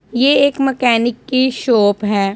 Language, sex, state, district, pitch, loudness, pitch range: Hindi, male, Punjab, Pathankot, 245 Hz, -14 LUFS, 215-270 Hz